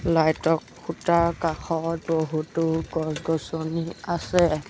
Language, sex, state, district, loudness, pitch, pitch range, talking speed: Assamese, male, Assam, Sonitpur, -25 LUFS, 165 Hz, 160-165 Hz, 75 wpm